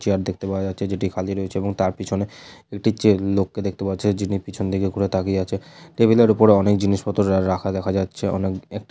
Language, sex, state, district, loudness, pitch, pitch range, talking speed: Bengali, male, West Bengal, Jhargram, -21 LUFS, 100 Hz, 95-100 Hz, 215 wpm